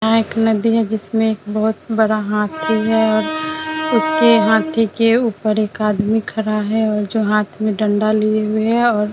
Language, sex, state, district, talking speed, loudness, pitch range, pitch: Hindi, female, Bihar, Vaishali, 180 wpm, -17 LUFS, 215-225 Hz, 220 Hz